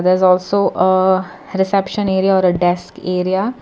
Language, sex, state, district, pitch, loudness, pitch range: English, female, Karnataka, Bangalore, 185 Hz, -16 LUFS, 180-195 Hz